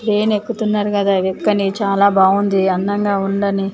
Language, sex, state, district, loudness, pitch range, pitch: Telugu, female, Telangana, Nalgonda, -16 LUFS, 195-210 Hz, 200 Hz